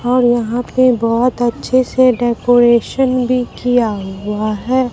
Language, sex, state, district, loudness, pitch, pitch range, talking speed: Hindi, female, Bihar, Katihar, -14 LUFS, 245 Hz, 235-255 Hz, 135 wpm